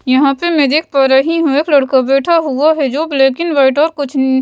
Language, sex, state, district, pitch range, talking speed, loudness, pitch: Hindi, female, Bihar, West Champaran, 270-315 Hz, 270 wpm, -12 LUFS, 280 Hz